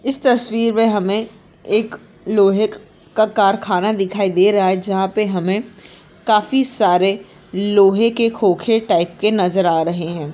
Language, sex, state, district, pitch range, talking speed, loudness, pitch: Hindi, female, Maharashtra, Aurangabad, 190-220 Hz, 150 wpm, -16 LUFS, 205 Hz